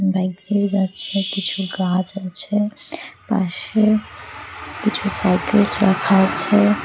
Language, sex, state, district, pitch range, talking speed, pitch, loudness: Bengali, female, Tripura, West Tripura, 190-210 Hz, 95 wpm, 195 Hz, -19 LUFS